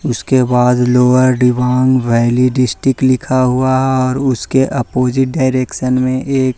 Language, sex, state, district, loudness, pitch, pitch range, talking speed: Hindi, male, Arunachal Pradesh, Lower Dibang Valley, -13 LUFS, 130 Hz, 125-130 Hz, 135 wpm